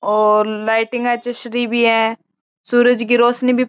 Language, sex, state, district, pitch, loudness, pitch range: Marwari, female, Rajasthan, Churu, 240 Hz, -16 LUFS, 225-245 Hz